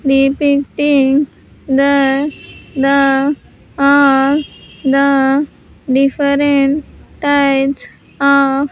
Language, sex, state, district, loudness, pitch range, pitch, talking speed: English, female, Andhra Pradesh, Sri Satya Sai, -13 LUFS, 275-285 Hz, 280 Hz, 55 wpm